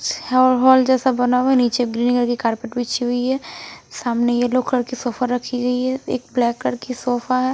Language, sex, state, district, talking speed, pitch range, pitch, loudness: Hindi, female, Himachal Pradesh, Shimla, 215 wpm, 245-255 Hz, 250 Hz, -19 LUFS